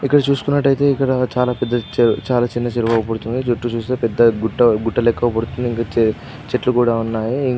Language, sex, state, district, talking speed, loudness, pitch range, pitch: Telugu, male, Andhra Pradesh, Guntur, 140 wpm, -18 LUFS, 115-130 Hz, 120 Hz